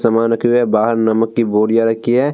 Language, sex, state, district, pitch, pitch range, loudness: Hindi, male, Bihar, Vaishali, 115 Hz, 110-120 Hz, -15 LUFS